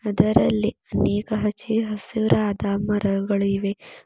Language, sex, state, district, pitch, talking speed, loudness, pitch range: Kannada, female, Karnataka, Bidar, 205 Hz, 90 wpm, -22 LUFS, 200-215 Hz